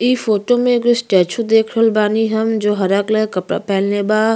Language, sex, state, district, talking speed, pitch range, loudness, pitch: Bhojpuri, female, Uttar Pradesh, Ghazipur, 220 wpm, 205-225 Hz, -16 LUFS, 220 Hz